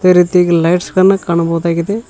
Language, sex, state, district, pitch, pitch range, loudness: Kannada, male, Karnataka, Koppal, 175 Hz, 170-185 Hz, -12 LUFS